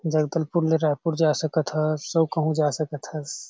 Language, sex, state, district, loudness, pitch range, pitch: Chhattisgarhi, male, Chhattisgarh, Sarguja, -24 LUFS, 150-160 Hz, 155 Hz